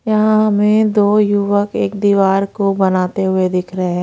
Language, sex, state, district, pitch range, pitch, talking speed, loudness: Hindi, female, Haryana, Rohtak, 190-210 Hz, 200 Hz, 165 wpm, -14 LUFS